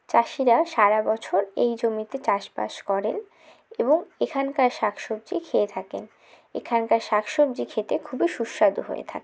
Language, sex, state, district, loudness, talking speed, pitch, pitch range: Bengali, female, West Bengal, Jalpaiguri, -24 LUFS, 125 wpm, 235 Hz, 215-295 Hz